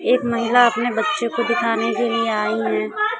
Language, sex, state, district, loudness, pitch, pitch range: Hindi, female, Bihar, West Champaran, -19 LUFS, 235 Hz, 230-245 Hz